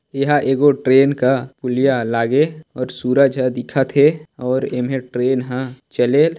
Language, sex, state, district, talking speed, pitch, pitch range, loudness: Chhattisgarhi, male, Chhattisgarh, Sarguja, 160 wpm, 130 Hz, 125-140 Hz, -17 LUFS